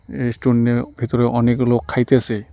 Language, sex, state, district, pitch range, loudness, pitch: Bengali, male, West Bengal, Alipurduar, 120-125 Hz, -18 LUFS, 120 Hz